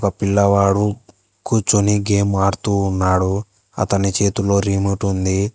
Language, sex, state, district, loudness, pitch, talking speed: Telugu, male, Telangana, Hyderabad, -18 LUFS, 100 Hz, 95 wpm